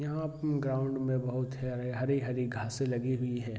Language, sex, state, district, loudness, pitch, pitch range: Hindi, male, Bihar, Vaishali, -33 LUFS, 130 Hz, 125-135 Hz